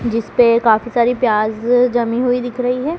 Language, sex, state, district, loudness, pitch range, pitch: Hindi, female, Madhya Pradesh, Dhar, -15 LUFS, 230-245 Hz, 240 Hz